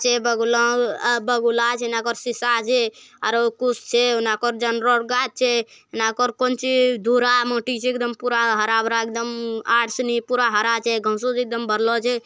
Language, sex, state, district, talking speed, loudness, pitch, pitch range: Angika, female, Bihar, Bhagalpur, 40 wpm, -20 LUFS, 235 Hz, 230-245 Hz